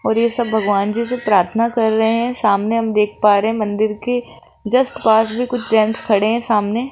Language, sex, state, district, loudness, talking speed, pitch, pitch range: Hindi, female, Rajasthan, Jaipur, -17 LUFS, 235 wpm, 220 Hz, 210-235 Hz